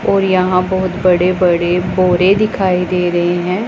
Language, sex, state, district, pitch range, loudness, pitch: Hindi, female, Punjab, Pathankot, 180-185 Hz, -14 LUFS, 185 Hz